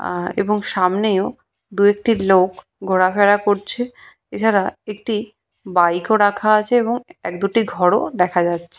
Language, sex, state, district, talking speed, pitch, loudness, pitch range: Bengali, female, West Bengal, Purulia, 145 wpm, 205 Hz, -18 LUFS, 185-215 Hz